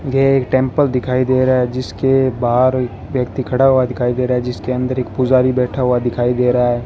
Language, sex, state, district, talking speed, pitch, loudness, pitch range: Hindi, male, Rajasthan, Bikaner, 220 wpm, 125 Hz, -16 LUFS, 125-130 Hz